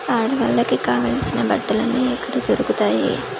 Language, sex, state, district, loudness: Telugu, female, Andhra Pradesh, Manyam, -19 LUFS